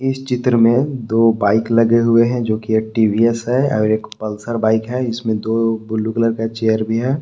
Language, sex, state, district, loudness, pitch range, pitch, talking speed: Hindi, male, Jharkhand, Palamu, -17 LUFS, 110-120 Hz, 115 Hz, 215 wpm